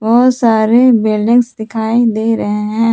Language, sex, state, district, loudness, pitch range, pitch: Hindi, female, Jharkhand, Palamu, -12 LUFS, 220-235 Hz, 225 Hz